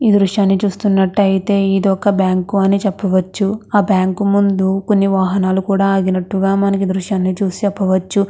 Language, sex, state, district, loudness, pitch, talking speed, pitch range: Telugu, female, Andhra Pradesh, Krishna, -15 LUFS, 195 Hz, 160 wpm, 190-200 Hz